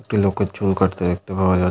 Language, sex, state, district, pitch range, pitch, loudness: Bengali, male, West Bengal, Paschim Medinipur, 90-100 Hz, 95 Hz, -20 LUFS